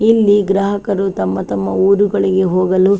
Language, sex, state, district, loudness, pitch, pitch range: Kannada, female, Karnataka, Chamarajanagar, -14 LUFS, 195 Hz, 185-200 Hz